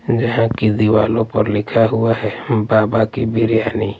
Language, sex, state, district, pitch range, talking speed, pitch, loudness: Hindi, male, Delhi, New Delhi, 110-115 Hz, 150 wpm, 110 Hz, -16 LUFS